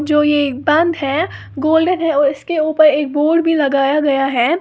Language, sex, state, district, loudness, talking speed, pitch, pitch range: Hindi, female, Uttar Pradesh, Lalitpur, -15 LUFS, 195 wpm, 300 Hz, 285-320 Hz